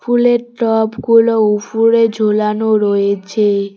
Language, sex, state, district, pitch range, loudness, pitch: Bengali, female, West Bengal, Cooch Behar, 210-230 Hz, -14 LUFS, 220 Hz